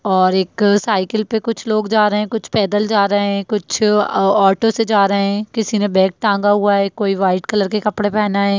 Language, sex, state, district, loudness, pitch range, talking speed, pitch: Hindi, female, Bihar, Jamui, -16 LUFS, 200-215 Hz, 235 wpm, 205 Hz